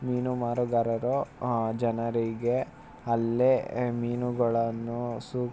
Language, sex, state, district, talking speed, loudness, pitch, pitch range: Kannada, male, Karnataka, Mysore, 75 wpm, -28 LUFS, 120 Hz, 115-125 Hz